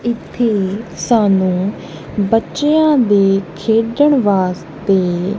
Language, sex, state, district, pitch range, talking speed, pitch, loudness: Punjabi, female, Punjab, Kapurthala, 185-230 Hz, 65 wpm, 200 Hz, -15 LUFS